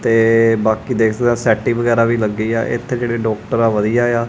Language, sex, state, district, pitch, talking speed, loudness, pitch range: Punjabi, male, Punjab, Kapurthala, 115 Hz, 225 wpm, -16 LUFS, 110-120 Hz